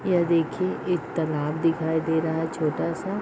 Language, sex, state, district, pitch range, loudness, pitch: Hindi, female, Bihar, Madhepura, 160-175 Hz, -25 LUFS, 160 Hz